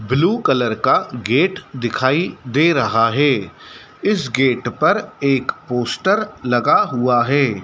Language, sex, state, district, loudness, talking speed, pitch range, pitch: Hindi, male, Madhya Pradesh, Dhar, -17 LUFS, 125 wpm, 125-165 Hz, 135 Hz